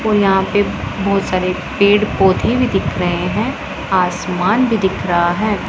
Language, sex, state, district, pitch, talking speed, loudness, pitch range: Hindi, female, Punjab, Pathankot, 195 Hz, 170 wpm, -16 LUFS, 185-205 Hz